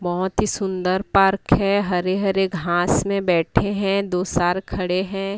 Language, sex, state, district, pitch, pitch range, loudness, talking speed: Hindi, female, Odisha, Sambalpur, 190 Hz, 180-195 Hz, -20 LUFS, 165 wpm